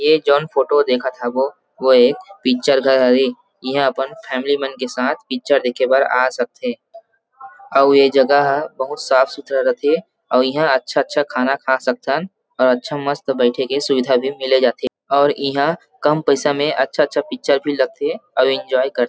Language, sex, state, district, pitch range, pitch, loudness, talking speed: Chhattisgarhi, male, Chhattisgarh, Rajnandgaon, 130-145 Hz, 135 Hz, -17 LUFS, 190 wpm